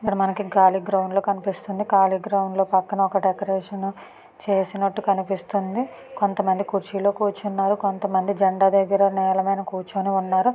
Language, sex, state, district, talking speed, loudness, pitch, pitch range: Telugu, female, Andhra Pradesh, Anantapur, 115 wpm, -22 LUFS, 195 Hz, 190-200 Hz